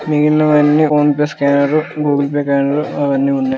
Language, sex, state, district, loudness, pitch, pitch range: Telugu, male, Andhra Pradesh, Krishna, -14 LUFS, 145 Hz, 140-150 Hz